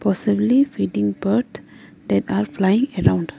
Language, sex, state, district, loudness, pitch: English, female, Arunachal Pradesh, Lower Dibang Valley, -20 LUFS, 190 Hz